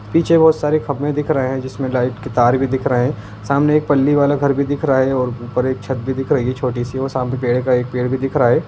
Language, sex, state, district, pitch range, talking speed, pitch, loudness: Hindi, male, Bihar, Jamui, 125-140 Hz, 290 wpm, 130 Hz, -17 LUFS